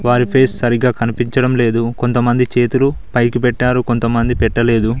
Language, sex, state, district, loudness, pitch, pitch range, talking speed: Telugu, male, Telangana, Mahabubabad, -15 LUFS, 120 Hz, 115-125 Hz, 120 wpm